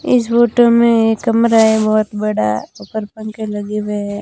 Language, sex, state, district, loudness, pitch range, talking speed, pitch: Hindi, female, Rajasthan, Jaisalmer, -15 LUFS, 210-230 Hz, 185 wpm, 220 Hz